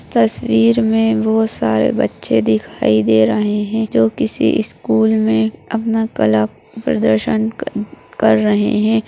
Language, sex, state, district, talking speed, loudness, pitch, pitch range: Hindi, female, Bihar, Jahanabad, 125 wpm, -15 LUFS, 110 Hz, 110-175 Hz